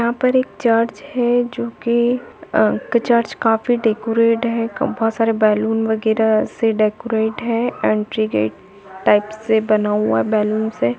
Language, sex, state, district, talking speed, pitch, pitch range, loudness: Hindi, female, Bihar, Gopalganj, 145 wpm, 225 Hz, 215-235 Hz, -18 LUFS